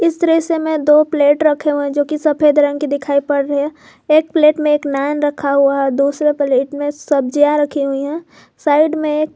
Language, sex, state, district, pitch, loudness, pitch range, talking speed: Hindi, female, Jharkhand, Garhwa, 295 Hz, -15 LUFS, 285-305 Hz, 210 wpm